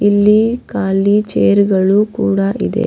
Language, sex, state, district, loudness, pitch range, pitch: Kannada, female, Karnataka, Raichur, -13 LUFS, 195-210 Hz, 200 Hz